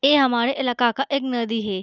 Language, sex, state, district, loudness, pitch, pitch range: Hindi, female, Bihar, Begusarai, -21 LUFS, 250 Hz, 235-275 Hz